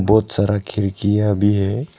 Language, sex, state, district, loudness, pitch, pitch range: Hindi, male, Arunachal Pradesh, Longding, -18 LUFS, 105 Hz, 100-105 Hz